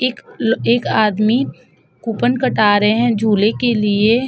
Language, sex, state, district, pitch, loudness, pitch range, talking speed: Hindi, female, Uttar Pradesh, Budaun, 225 Hz, -16 LUFS, 210-240 Hz, 140 wpm